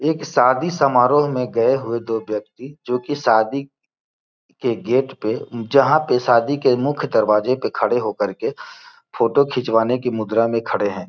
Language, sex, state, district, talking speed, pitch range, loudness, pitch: Hindi, male, Bihar, Gopalganj, 160 wpm, 115-145 Hz, -19 LUFS, 130 Hz